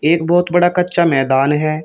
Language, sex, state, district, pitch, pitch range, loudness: Hindi, male, Uttar Pradesh, Shamli, 165 Hz, 150-175 Hz, -14 LUFS